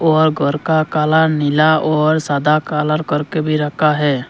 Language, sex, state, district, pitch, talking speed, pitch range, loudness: Hindi, male, Arunachal Pradesh, Lower Dibang Valley, 155 Hz, 165 wpm, 150-155 Hz, -15 LUFS